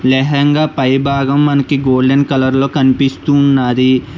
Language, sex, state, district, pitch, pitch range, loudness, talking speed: Telugu, male, Telangana, Hyderabad, 135 Hz, 130-140 Hz, -12 LUFS, 115 wpm